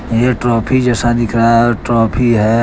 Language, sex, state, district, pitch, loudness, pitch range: Hindi, male, Jharkhand, Deoghar, 120 Hz, -13 LUFS, 115-120 Hz